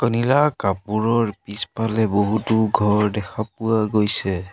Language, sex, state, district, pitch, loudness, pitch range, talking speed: Assamese, male, Assam, Sonitpur, 110 Hz, -20 LUFS, 105-115 Hz, 105 wpm